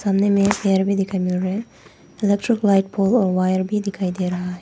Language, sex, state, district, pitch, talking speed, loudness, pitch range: Hindi, female, Arunachal Pradesh, Papum Pare, 195 Hz, 260 wpm, -20 LUFS, 185-205 Hz